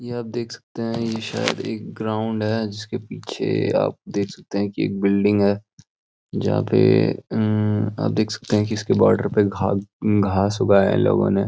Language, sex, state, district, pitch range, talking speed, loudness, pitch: Hindi, male, Uttarakhand, Uttarkashi, 100-110 Hz, 195 wpm, -21 LUFS, 105 Hz